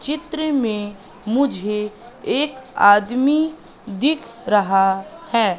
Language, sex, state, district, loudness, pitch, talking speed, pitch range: Hindi, female, Madhya Pradesh, Katni, -19 LUFS, 235 Hz, 85 wpm, 205-295 Hz